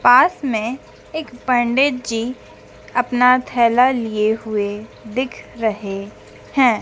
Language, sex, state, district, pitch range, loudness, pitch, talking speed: Hindi, female, Madhya Pradesh, Dhar, 220-255 Hz, -19 LUFS, 240 Hz, 105 wpm